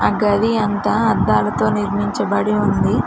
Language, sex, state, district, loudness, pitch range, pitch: Telugu, female, Telangana, Mahabubabad, -17 LUFS, 205-210 Hz, 205 Hz